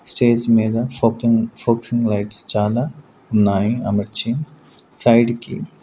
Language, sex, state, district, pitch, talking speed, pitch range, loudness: Telugu, male, Andhra Pradesh, Sri Satya Sai, 115 Hz, 105 wpm, 110-120 Hz, -18 LUFS